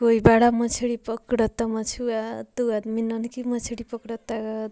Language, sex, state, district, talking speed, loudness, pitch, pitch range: Bhojpuri, female, Bihar, Muzaffarpur, 140 wpm, -24 LUFS, 230 Hz, 225-235 Hz